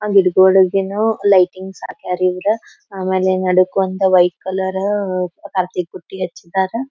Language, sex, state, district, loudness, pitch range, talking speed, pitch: Kannada, female, Karnataka, Belgaum, -17 LUFS, 185-195 Hz, 80 wpm, 190 Hz